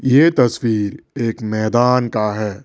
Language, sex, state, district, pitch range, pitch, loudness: Hindi, male, Assam, Kamrup Metropolitan, 110-125 Hz, 115 Hz, -17 LUFS